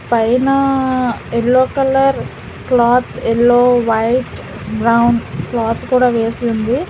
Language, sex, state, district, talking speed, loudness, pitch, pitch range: Telugu, female, Telangana, Hyderabad, 95 wpm, -14 LUFS, 245 Hz, 235-255 Hz